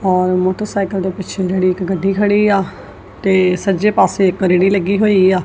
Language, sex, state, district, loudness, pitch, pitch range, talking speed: Punjabi, female, Punjab, Kapurthala, -15 LUFS, 190 Hz, 185-195 Hz, 185 wpm